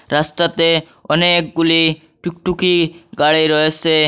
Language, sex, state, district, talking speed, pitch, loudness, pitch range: Bengali, male, Assam, Hailakandi, 75 wpm, 165 Hz, -15 LUFS, 155-170 Hz